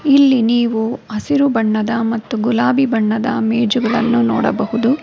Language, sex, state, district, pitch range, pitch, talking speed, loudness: Kannada, female, Karnataka, Bangalore, 225-255 Hz, 230 Hz, 110 wpm, -16 LUFS